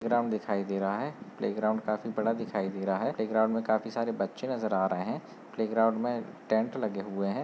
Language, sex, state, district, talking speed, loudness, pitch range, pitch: Hindi, male, West Bengal, Malda, 240 wpm, -31 LUFS, 100-115 Hz, 110 Hz